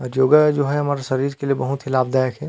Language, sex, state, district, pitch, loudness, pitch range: Chhattisgarhi, male, Chhattisgarh, Rajnandgaon, 135 Hz, -19 LUFS, 130-145 Hz